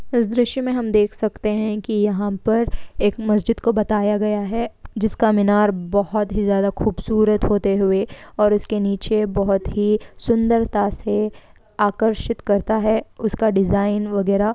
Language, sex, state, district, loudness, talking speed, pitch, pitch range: Hindi, female, Bihar, Samastipur, -20 LUFS, 150 wpm, 210 Hz, 205-220 Hz